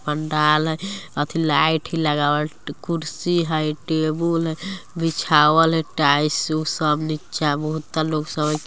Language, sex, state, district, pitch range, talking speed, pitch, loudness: Bajjika, female, Bihar, Vaishali, 150-165 Hz, 125 wpm, 155 Hz, -21 LUFS